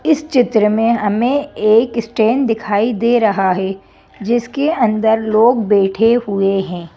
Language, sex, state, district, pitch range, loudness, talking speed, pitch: Hindi, female, Madhya Pradesh, Bhopal, 205-240 Hz, -15 LUFS, 140 wpm, 225 Hz